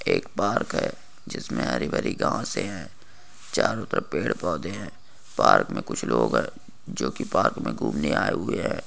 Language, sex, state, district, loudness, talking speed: Hindi, male, Jharkhand, Jamtara, -26 LUFS, 175 wpm